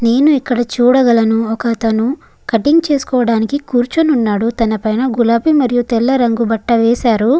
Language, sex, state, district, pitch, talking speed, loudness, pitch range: Telugu, female, Andhra Pradesh, Guntur, 240 Hz, 140 wpm, -13 LUFS, 230-260 Hz